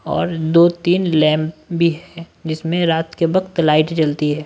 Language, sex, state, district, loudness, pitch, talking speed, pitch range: Hindi, male, Maharashtra, Washim, -17 LUFS, 165 Hz, 160 wpm, 155-170 Hz